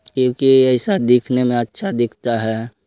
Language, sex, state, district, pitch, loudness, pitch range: Hindi, male, Chhattisgarh, Balrampur, 120 Hz, -16 LUFS, 115-125 Hz